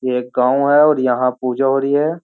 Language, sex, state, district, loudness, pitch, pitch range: Hindi, male, Uttar Pradesh, Jyotiba Phule Nagar, -15 LUFS, 135 Hz, 125-145 Hz